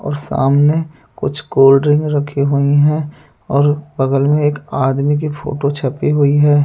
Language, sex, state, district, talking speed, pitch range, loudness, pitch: Hindi, male, Delhi, New Delhi, 160 wpm, 140-150 Hz, -15 LUFS, 145 Hz